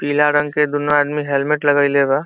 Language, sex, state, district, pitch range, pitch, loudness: Bhojpuri, male, Bihar, Saran, 145-150 Hz, 145 Hz, -16 LUFS